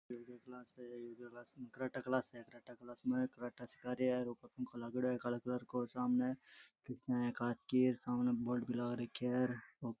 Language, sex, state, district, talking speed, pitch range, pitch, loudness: Rajasthani, male, Rajasthan, Churu, 190 wpm, 120-125 Hz, 125 Hz, -40 LUFS